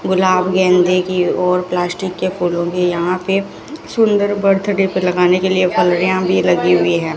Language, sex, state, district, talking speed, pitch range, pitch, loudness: Hindi, female, Rajasthan, Bikaner, 175 wpm, 180-190 Hz, 185 Hz, -15 LUFS